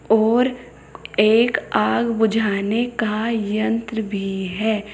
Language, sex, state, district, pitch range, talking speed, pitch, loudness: Hindi, female, Uttar Pradesh, Saharanpur, 210-230 Hz, 95 wpm, 220 Hz, -20 LUFS